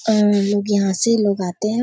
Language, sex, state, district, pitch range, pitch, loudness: Hindi, female, Bihar, Darbhanga, 200-215 Hz, 205 Hz, -18 LUFS